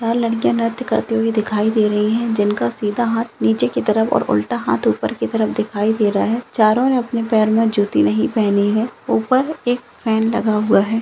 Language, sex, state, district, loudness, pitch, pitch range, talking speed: Hindi, female, Andhra Pradesh, Anantapur, -18 LUFS, 220 Hz, 205-230 Hz, 210 wpm